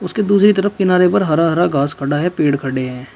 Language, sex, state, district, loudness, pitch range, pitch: Hindi, male, Uttar Pradesh, Shamli, -15 LUFS, 140-190 Hz, 175 Hz